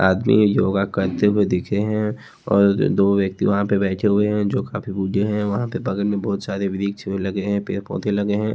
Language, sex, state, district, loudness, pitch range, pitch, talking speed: Hindi, male, Haryana, Charkhi Dadri, -20 LUFS, 100-105 Hz, 100 Hz, 225 wpm